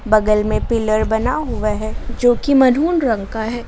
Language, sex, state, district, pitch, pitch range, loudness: Hindi, female, Jharkhand, Garhwa, 225 Hz, 215-250 Hz, -17 LUFS